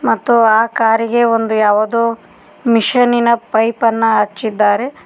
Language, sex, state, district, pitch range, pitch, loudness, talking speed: Kannada, female, Karnataka, Koppal, 220-235 Hz, 230 Hz, -13 LUFS, 120 wpm